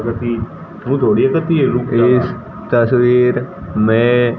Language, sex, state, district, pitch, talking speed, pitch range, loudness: Hindi, male, Haryana, Jhajjar, 120 Hz, 40 wpm, 115-125 Hz, -15 LUFS